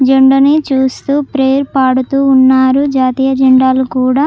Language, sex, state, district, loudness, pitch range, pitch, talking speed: Telugu, female, Andhra Pradesh, Chittoor, -10 LUFS, 260-275 Hz, 265 Hz, 140 wpm